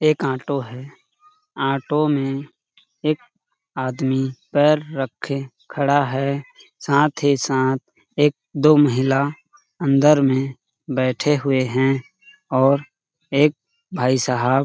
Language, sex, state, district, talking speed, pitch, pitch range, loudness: Hindi, male, Chhattisgarh, Balrampur, 110 wpm, 140 Hz, 135-150 Hz, -20 LUFS